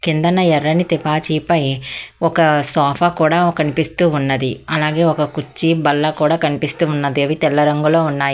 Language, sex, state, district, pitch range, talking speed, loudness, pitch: Telugu, female, Telangana, Hyderabad, 150-165 Hz, 135 wpm, -16 LUFS, 155 Hz